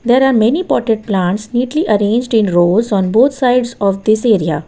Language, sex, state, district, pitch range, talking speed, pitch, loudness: English, female, Gujarat, Valsad, 200-250 Hz, 190 wpm, 220 Hz, -13 LUFS